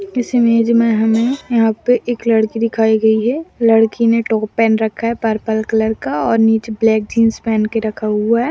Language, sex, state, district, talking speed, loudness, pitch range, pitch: Hindi, female, Bihar, Jahanabad, 205 wpm, -15 LUFS, 220-230 Hz, 225 Hz